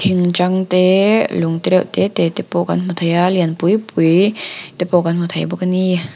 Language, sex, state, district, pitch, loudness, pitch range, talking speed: Mizo, female, Mizoram, Aizawl, 180 Hz, -16 LUFS, 170-185 Hz, 245 wpm